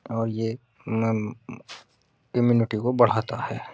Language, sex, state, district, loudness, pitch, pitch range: Hindi, male, Uttarakhand, Uttarkashi, -25 LUFS, 115 Hz, 110-120 Hz